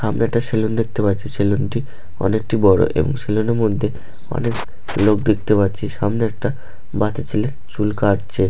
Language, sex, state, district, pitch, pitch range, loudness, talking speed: Bengali, male, West Bengal, Malda, 105 Hz, 100-115 Hz, -19 LUFS, 155 wpm